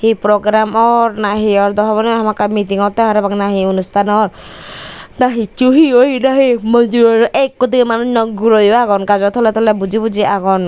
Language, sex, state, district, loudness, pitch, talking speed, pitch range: Chakma, female, Tripura, Dhalai, -12 LUFS, 220 Hz, 190 wpm, 205-235 Hz